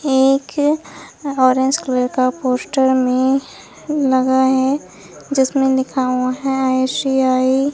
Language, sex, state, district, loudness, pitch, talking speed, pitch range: Hindi, female, Bihar, Katihar, -17 LUFS, 265 Hz, 100 wpm, 260-275 Hz